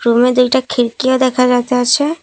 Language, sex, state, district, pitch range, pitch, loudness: Bengali, female, Assam, Kamrup Metropolitan, 245-260 Hz, 250 Hz, -13 LUFS